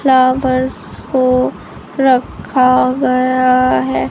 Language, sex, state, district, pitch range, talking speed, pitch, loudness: Hindi, female, Bihar, Kaimur, 255-260 Hz, 75 wpm, 255 Hz, -13 LUFS